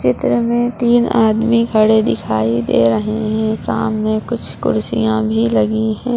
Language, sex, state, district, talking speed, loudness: Hindi, female, Bihar, Muzaffarpur, 145 wpm, -15 LUFS